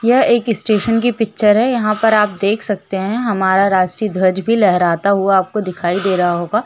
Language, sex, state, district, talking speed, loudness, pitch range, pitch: Hindi, female, Jharkhand, Jamtara, 205 wpm, -15 LUFS, 190-225 Hz, 205 Hz